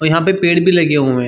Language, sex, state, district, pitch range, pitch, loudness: Hindi, male, Uttar Pradesh, Jalaun, 145-175 Hz, 165 Hz, -13 LUFS